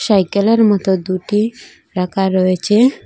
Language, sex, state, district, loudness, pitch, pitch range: Bengali, female, Assam, Hailakandi, -15 LUFS, 195 Hz, 185-210 Hz